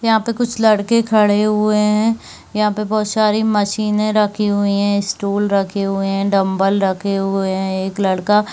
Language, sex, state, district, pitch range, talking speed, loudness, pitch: Hindi, female, Chhattisgarh, Bilaspur, 195-215 Hz, 175 wpm, -17 LUFS, 205 Hz